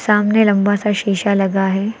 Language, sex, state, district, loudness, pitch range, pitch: Hindi, female, Uttar Pradesh, Lucknow, -16 LUFS, 195-210 Hz, 205 Hz